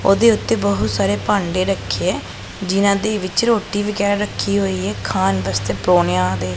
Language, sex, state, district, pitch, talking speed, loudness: Punjabi, female, Punjab, Pathankot, 180 Hz, 175 wpm, -18 LUFS